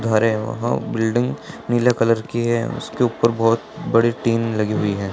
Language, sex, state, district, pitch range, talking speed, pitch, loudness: Hindi, male, Bihar, Purnia, 110-120 Hz, 185 wpm, 115 Hz, -20 LUFS